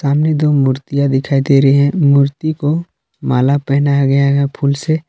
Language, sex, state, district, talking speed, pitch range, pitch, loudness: Hindi, male, Jharkhand, Palamu, 165 wpm, 140-150 Hz, 140 Hz, -14 LUFS